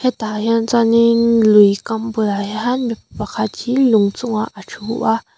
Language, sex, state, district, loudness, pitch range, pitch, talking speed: Mizo, female, Mizoram, Aizawl, -16 LUFS, 215-235 Hz, 225 Hz, 145 wpm